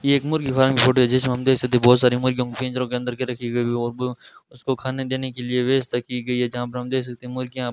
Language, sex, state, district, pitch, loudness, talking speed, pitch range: Hindi, male, Rajasthan, Bikaner, 125 Hz, -22 LUFS, 295 wpm, 125-130 Hz